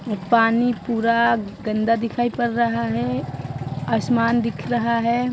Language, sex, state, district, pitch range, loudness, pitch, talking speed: Hindi, female, Bihar, Saran, 200-235 Hz, -21 LUFS, 230 Hz, 135 wpm